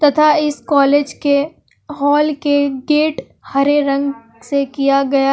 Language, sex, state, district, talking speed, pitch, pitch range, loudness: Hindi, female, Jharkhand, Palamu, 135 wpm, 285 Hz, 275-295 Hz, -15 LUFS